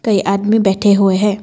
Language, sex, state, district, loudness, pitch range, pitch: Hindi, female, Assam, Kamrup Metropolitan, -13 LUFS, 195-210 Hz, 200 Hz